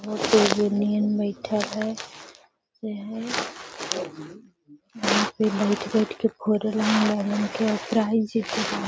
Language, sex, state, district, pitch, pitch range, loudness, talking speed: Magahi, female, Bihar, Gaya, 215 Hz, 205-220 Hz, -24 LUFS, 70 wpm